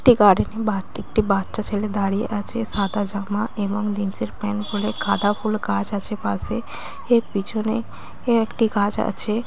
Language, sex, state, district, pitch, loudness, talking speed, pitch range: Bengali, female, West Bengal, Dakshin Dinajpur, 210 Hz, -22 LUFS, 175 wpm, 200-220 Hz